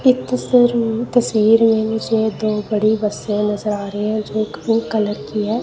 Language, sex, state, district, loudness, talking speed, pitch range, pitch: Hindi, female, Punjab, Kapurthala, -18 LUFS, 200 wpm, 210-230 Hz, 220 Hz